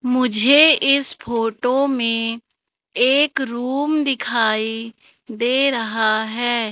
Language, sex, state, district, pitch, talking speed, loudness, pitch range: Hindi, female, Madhya Pradesh, Katni, 240 Hz, 90 wpm, -18 LUFS, 230-270 Hz